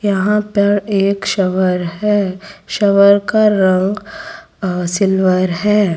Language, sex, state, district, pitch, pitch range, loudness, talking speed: Hindi, female, Gujarat, Valsad, 200 Hz, 190-210 Hz, -14 LUFS, 100 wpm